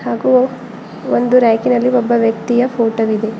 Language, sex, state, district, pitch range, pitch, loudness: Kannada, female, Karnataka, Bidar, 225-250 Hz, 235 Hz, -14 LUFS